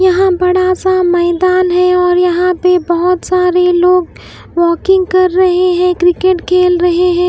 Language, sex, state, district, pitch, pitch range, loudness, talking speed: Hindi, female, Bihar, West Champaran, 360 Hz, 355-370 Hz, -11 LUFS, 155 wpm